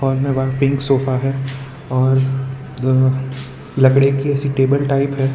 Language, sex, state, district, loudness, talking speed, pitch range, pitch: Hindi, male, Gujarat, Valsad, -17 LUFS, 145 wpm, 130-135 Hz, 135 Hz